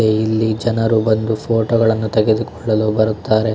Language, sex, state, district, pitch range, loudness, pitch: Kannada, male, Karnataka, Shimoga, 110-115 Hz, -16 LUFS, 110 Hz